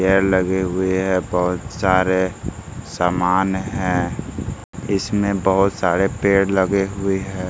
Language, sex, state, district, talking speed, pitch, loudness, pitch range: Hindi, male, Bihar, Jamui, 120 wpm, 95 Hz, -19 LUFS, 90-95 Hz